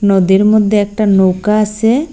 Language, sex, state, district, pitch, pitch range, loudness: Bengali, female, Assam, Hailakandi, 210 Hz, 195-215 Hz, -11 LUFS